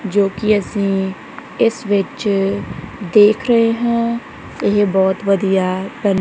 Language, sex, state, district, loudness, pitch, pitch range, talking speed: Punjabi, female, Punjab, Kapurthala, -16 LUFS, 200 Hz, 195-225 Hz, 105 wpm